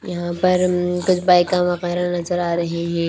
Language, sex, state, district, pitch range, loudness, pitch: Hindi, female, Haryana, Rohtak, 175-180 Hz, -19 LUFS, 175 Hz